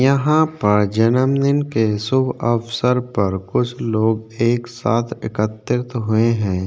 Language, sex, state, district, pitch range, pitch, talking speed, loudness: Hindi, male, Uttarakhand, Tehri Garhwal, 110-125 Hz, 115 Hz, 125 wpm, -18 LUFS